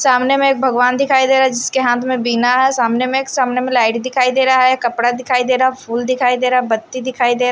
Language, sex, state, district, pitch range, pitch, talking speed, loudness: Hindi, female, Haryana, Charkhi Dadri, 245-260 Hz, 255 Hz, 270 wpm, -15 LUFS